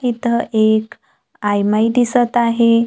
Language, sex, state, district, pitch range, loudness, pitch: Marathi, female, Maharashtra, Gondia, 220-240 Hz, -16 LUFS, 235 Hz